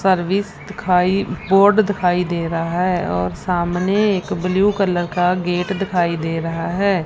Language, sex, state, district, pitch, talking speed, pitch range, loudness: Hindi, female, Punjab, Fazilka, 180 Hz, 155 wpm, 175-195 Hz, -18 LUFS